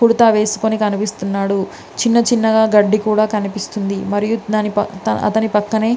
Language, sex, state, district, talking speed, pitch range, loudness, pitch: Telugu, female, Andhra Pradesh, Visakhapatnam, 140 wpm, 205-220 Hz, -16 LUFS, 215 Hz